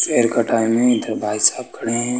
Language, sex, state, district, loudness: Hindi, male, Uttar Pradesh, Budaun, -18 LUFS